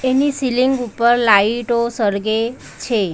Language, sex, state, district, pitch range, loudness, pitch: Gujarati, female, Gujarat, Valsad, 220-255 Hz, -17 LUFS, 235 Hz